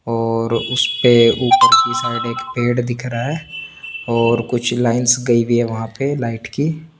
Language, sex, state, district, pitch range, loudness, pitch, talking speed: Hindi, male, Chandigarh, Chandigarh, 115-140 Hz, -16 LUFS, 120 Hz, 190 wpm